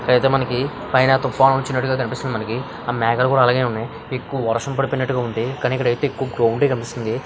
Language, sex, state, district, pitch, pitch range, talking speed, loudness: Telugu, male, Andhra Pradesh, Visakhapatnam, 130 Hz, 120-135 Hz, 190 wpm, -20 LUFS